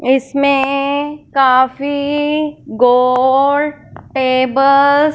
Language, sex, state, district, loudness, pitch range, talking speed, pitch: Hindi, female, Punjab, Fazilka, -13 LUFS, 260-285 Hz, 60 wpm, 275 Hz